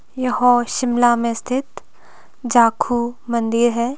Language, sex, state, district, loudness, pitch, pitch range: Hindi, female, Himachal Pradesh, Shimla, -18 LUFS, 240 Hz, 235-250 Hz